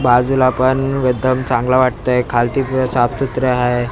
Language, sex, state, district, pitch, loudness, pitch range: Marathi, male, Maharashtra, Mumbai Suburban, 130 Hz, -16 LUFS, 125-130 Hz